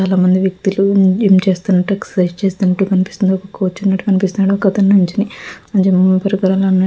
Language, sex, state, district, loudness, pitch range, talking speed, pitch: Telugu, female, Andhra Pradesh, Visakhapatnam, -14 LUFS, 185-195 Hz, 70 wpm, 190 Hz